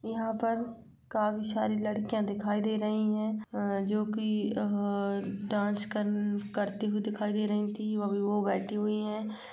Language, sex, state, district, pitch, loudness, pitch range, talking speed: Hindi, female, Bihar, East Champaran, 210 Hz, -32 LUFS, 205-215 Hz, 155 wpm